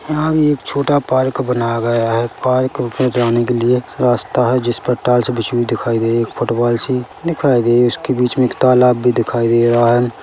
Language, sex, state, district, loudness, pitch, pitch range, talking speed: Hindi, male, Chhattisgarh, Bilaspur, -15 LUFS, 125 Hz, 120-130 Hz, 250 wpm